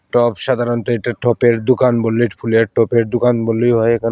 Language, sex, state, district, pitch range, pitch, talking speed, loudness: Bengali, male, Tripura, Unakoti, 115-120 Hz, 120 Hz, 175 wpm, -15 LUFS